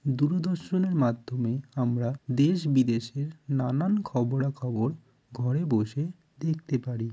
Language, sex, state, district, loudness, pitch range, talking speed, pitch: Bengali, male, West Bengal, Jalpaiguri, -28 LUFS, 125-155 Hz, 100 wpm, 135 Hz